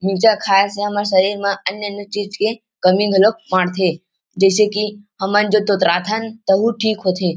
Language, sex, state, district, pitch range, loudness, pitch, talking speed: Chhattisgarhi, male, Chhattisgarh, Rajnandgaon, 190-210 Hz, -17 LUFS, 205 Hz, 170 wpm